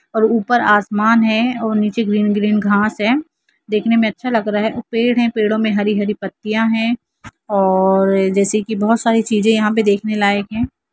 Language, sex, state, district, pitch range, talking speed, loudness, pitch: Hindi, female, Jharkhand, Jamtara, 210-225 Hz, 190 wpm, -16 LUFS, 215 Hz